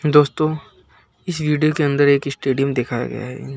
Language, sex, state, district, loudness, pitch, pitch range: Hindi, male, Bihar, Saran, -19 LUFS, 140 Hz, 125-150 Hz